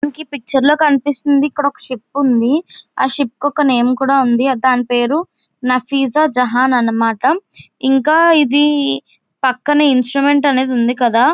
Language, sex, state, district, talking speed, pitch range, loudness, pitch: Telugu, female, Andhra Pradesh, Visakhapatnam, 150 wpm, 250-290 Hz, -14 LUFS, 270 Hz